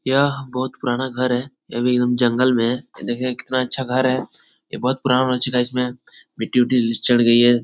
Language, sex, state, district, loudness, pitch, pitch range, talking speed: Hindi, male, Bihar, Jahanabad, -18 LUFS, 125 Hz, 120-130 Hz, 210 wpm